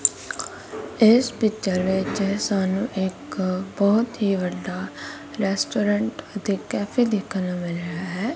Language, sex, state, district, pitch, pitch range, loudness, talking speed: Punjabi, female, Punjab, Kapurthala, 200 Hz, 190-220 Hz, -23 LUFS, 115 wpm